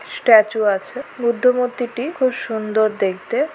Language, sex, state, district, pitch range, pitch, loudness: Bengali, female, West Bengal, Purulia, 215-250 Hz, 235 Hz, -18 LUFS